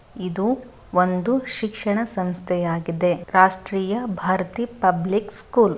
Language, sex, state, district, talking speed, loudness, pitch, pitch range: Kannada, female, Karnataka, Raichur, 105 wpm, -22 LUFS, 190 Hz, 180-225 Hz